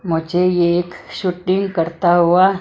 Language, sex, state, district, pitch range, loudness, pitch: Hindi, female, Maharashtra, Mumbai Suburban, 175-185 Hz, -17 LUFS, 180 Hz